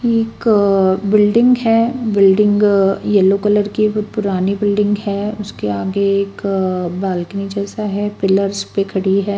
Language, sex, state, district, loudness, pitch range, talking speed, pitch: Hindi, female, Bihar, West Champaran, -16 LUFS, 195-210 Hz, 135 wpm, 200 Hz